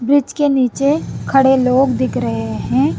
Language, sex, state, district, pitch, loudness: Hindi, female, Punjab, Kapurthala, 260 Hz, -15 LUFS